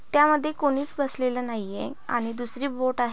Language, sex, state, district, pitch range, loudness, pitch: Marathi, female, Maharashtra, Pune, 240-285 Hz, -23 LUFS, 255 Hz